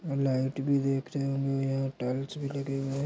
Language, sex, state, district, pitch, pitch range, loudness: Hindi, male, Maharashtra, Dhule, 135 Hz, 135-140 Hz, -30 LUFS